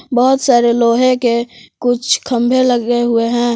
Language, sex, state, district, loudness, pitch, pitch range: Hindi, female, Jharkhand, Palamu, -13 LUFS, 240 Hz, 235-250 Hz